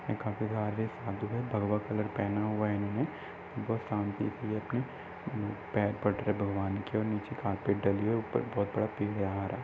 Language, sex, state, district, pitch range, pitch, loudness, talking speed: Hindi, male, Uttar Pradesh, Ghazipur, 100-110 Hz, 105 Hz, -34 LUFS, 210 wpm